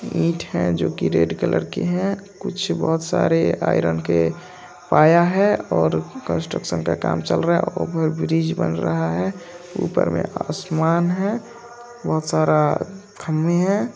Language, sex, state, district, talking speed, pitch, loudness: Hindi, male, Bihar, Lakhisarai, 155 wpm, 160 Hz, -20 LUFS